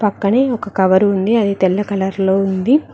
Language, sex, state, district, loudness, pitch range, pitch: Telugu, female, Telangana, Mahabubabad, -15 LUFS, 190-215 Hz, 200 Hz